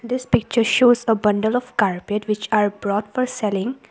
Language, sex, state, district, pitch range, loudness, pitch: English, female, Assam, Kamrup Metropolitan, 210-245 Hz, -20 LUFS, 220 Hz